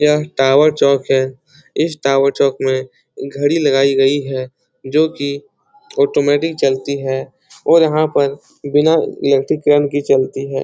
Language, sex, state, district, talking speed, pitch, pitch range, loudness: Hindi, male, Bihar, Jahanabad, 145 wpm, 140 Hz, 135-150 Hz, -15 LUFS